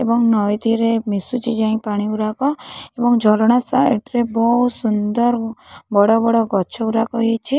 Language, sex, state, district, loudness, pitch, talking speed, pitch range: Odia, female, Odisha, Khordha, -17 LUFS, 230 Hz, 135 wpm, 215-240 Hz